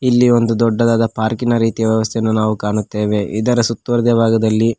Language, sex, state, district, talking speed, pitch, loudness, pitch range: Kannada, male, Karnataka, Koppal, 140 wpm, 115 Hz, -15 LUFS, 110-115 Hz